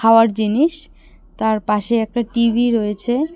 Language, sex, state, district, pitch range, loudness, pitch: Bengali, female, West Bengal, Cooch Behar, 220-240 Hz, -17 LUFS, 230 Hz